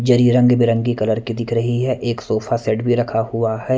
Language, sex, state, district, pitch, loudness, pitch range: Hindi, male, Punjab, Kapurthala, 115 Hz, -18 LUFS, 115-120 Hz